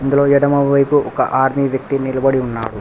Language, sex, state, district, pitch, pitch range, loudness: Telugu, male, Telangana, Hyderabad, 135 Hz, 130-140 Hz, -15 LUFS